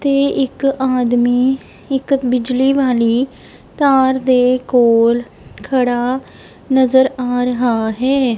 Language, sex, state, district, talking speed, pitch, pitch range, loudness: Punjabi, female, Punjab, Kapurthala, 100 wpm, 255 Hz, 245-265 Hz, -15 LUFS